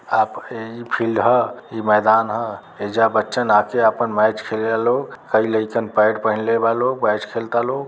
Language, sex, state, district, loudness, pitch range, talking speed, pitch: Bhojpuri, male, Uttar Pradesh, Deoria, -19 LUFS, 110-115 Hz, 200 wpm, 110 Hz